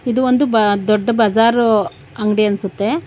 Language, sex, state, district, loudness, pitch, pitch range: Kannada, female, Karnataka, Bangalore, -15 LUFS, 215 Hz, 205-235 Hz